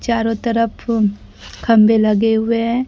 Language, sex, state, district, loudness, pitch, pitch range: Hindi, female, Bihar, Kaimur, -16 LUFS, 225 Hz, 220-230 Hz